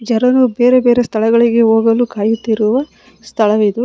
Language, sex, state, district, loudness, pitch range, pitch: Kannada, female, Karnataka, Bangalore, -13 LUFS, 220-245 Hz, 230 Hz